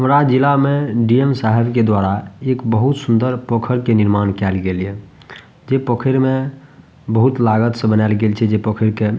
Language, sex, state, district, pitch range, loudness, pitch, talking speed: Maithili, male, Bihar, Madhepura, 110-130 Hz, -16 LUFS, 115 Hz, 190 wpm